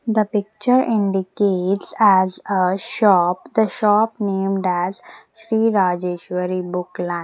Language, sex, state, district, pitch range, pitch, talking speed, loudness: English, female, Maharashtra, Mumbai Suburban, 180-215 Hz, 195 Hz, 125 wpm, -19 LUFS